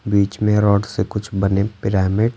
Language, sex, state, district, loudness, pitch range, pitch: Hindi, male, Bihar, Patna, -19 LUFS, 100-105 Hz, 105 Hz